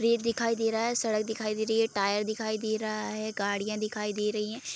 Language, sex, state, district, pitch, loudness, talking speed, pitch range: Hindi, female, Bihar, Sitamarhi, 220 Hz, -30 LUFS, 265 wpm, 210-225 Hz